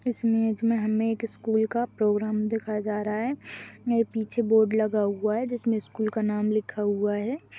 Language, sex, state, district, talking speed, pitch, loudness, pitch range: Hindi, female, West Bengal, Dakshin Dinajpur, 195 wpm, 220 Hz, -26 LUFS, 215-230 Hz